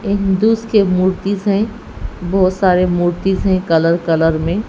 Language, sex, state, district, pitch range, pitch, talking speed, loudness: Hindi, female, Haryana, Rohtak, 175-200 Hz, 190 Hz, 140 wpm, -15 LUFS